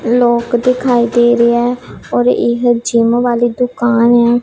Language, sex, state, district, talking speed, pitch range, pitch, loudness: Punjabi, female, Punjab, Pathankot, 150 wpm, 235-245 Hz, 240 Hz, -12 LUFS